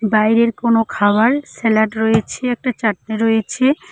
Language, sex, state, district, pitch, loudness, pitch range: Bengali, female, West Bengal, Cooch Behar, 225 Hz, -16 LUFS, 220-245 Hz